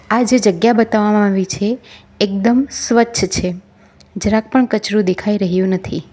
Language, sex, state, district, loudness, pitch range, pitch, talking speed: Gujarati, female, Gujarat, Valsad, -15 LUFS, 195-235 Hz, 210 Hz, 145 wpm